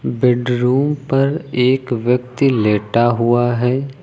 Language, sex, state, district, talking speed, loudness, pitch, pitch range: Hindi, male, Uttar Pradesh, Lucknow, 105 wpm, -16 LUFS, 125 Hz, 120-135 Hz